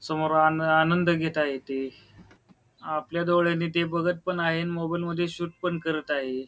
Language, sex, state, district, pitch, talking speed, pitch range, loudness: Marathi, male, Maharashtra, Pune, 165 Hz, 175 wpm, 155-170 Hz, -26 LUFS